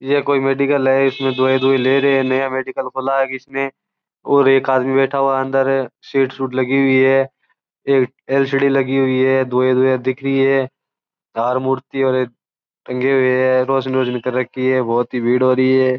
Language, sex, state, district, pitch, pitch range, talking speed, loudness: Marwari, male, Rajasthan, Churu, 130 Hz, 130-135 Hz, 170 wpm, -17 LUFS